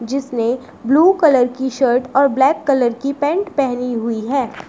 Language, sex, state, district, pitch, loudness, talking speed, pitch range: Hindi, female, Uttar Pradesh, Shamli, 265 Hz, -16 LUFS, 165 wpm, 245-280 Hz